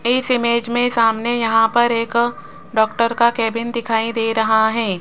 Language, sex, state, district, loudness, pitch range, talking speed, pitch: Hindi, female, Rajasthan, Jaipur, -17 LUFS, 225-235 Hz, 165 wpm, 230 Hz